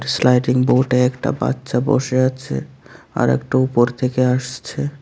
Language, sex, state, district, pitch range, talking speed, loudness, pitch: Bengali, male, Tripura, West Tripura, 125-130 Hz, 130 wpm, -18 LUFS, 125 Hz